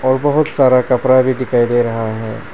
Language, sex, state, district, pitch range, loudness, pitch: Hindi, male, Arunachal Pradesh, Papum Pare, 115-130 Hz, -14 LUFS, 125 Hz